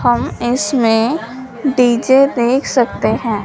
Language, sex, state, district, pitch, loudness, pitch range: Hindi, female, Punjab, Fazilka, 245 Hz, -14 LUFS, 235-265 Hz